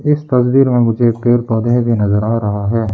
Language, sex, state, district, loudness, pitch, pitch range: Hindi, male, Arunachal Pradesh, Lower Dibang Valley, -14 LUFS, 120 Hz, 110-120 Hz